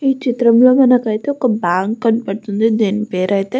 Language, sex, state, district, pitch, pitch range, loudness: Telugu, female, Andhra Pradesh, Guntur, 225 Hz, 205-250 Hz, -15 LUFS